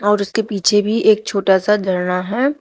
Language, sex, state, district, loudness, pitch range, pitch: Hindi, female, Uttar Pradesh, Shamli, -16 LUFS, 195-215 Hz, 205 Hz